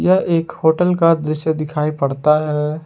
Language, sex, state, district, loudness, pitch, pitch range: Hindi, male, Jharkhand, Palamu, -17 LUFS, 155 Hz, 150-165 Hz